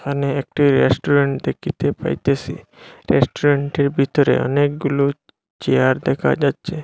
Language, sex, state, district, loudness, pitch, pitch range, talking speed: Bengali, male, Assam, Hailakandi, -18 LUFS, 140 Hz, 140-145 Hz, 95 wpm